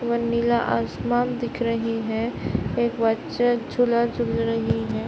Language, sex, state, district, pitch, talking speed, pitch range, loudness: Hindi, female, Bihar, Darbhanga, 235 Hz, 130 wpm, 220-240 Hz, -23 LUFS